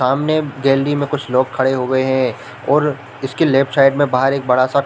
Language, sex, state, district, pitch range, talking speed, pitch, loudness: Hindi, male, Chhattisgarh, Bilaspur, 130-145 Hz, 220 wpm, 135 Hz, -16 LUFS